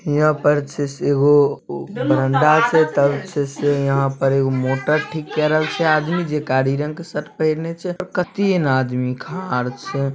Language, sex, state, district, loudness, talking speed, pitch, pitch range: Maithili, male, Bihar, Samastipur, -19 LUFS, 185 wpm, 150 Hz, 135-160 Hz